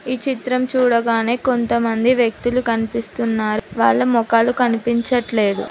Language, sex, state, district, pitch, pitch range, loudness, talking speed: Telugu, female, Telangana, Mahabubabad, 235 Hz, 230-250 Hz, -18 LUFS, 95 wpm